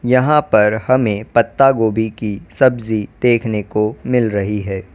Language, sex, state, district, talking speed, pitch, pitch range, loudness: Hindi, female, Uttar Pradesh, Lalitpur, 145 wpm, 110 Hz, 105-125 Hz, -16 LUFS